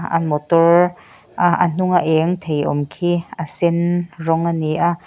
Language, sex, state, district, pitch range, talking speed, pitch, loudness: Mizo, female, Mizoram, Aizawl, 160-175 Hz, 175 wpm, 170 Hz, -18 LUFS